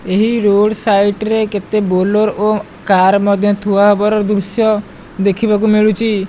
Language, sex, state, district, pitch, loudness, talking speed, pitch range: Odia, male, Odisha, Malkangiri, 205 Hz, -13 LUFS, 135 wpm, 200-215 Hz